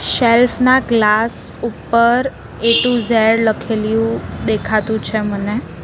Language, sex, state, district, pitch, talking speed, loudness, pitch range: Gujarati, female, Gujarat, Valsad, 230 Hz, 115 wpm, -15 LUFS, 220-235 Hz